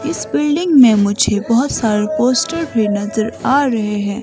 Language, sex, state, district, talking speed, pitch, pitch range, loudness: Hindi, female, Himachal Pradesh, Shimla, 170 wpm, 225 Hz, 210-280 Hz, -15 LUFS